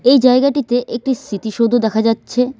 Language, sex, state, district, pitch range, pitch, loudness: Bengali, female, West Bengal, Cooch Behar, 225-260 Hz, 245 Hz, -16 LUFS